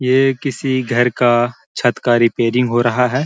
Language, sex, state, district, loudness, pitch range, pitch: Hindi, male, Bihar, Gaya, -16 LUFS, 120-130 Hz, 125 Hz